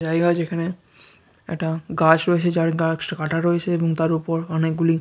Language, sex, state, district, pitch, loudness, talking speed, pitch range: Bengali, male, West Bengal, Jalpaiguri, 165 Hz, -21 LUFS, 205 wpm, 160-170 Hz